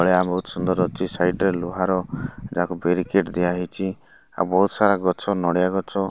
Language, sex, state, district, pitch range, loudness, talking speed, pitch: Odia, male, Odisha, Malkangiri, 90-95 Hz, -22 LUFS, 145 wpm, 90 Hz